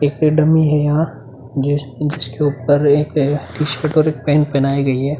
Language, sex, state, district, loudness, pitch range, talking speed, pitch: Hindi, male, Uttar Pradesh, Budaun, -16 LUFS, 140-150 Hz, 175 wpm, 145 Hz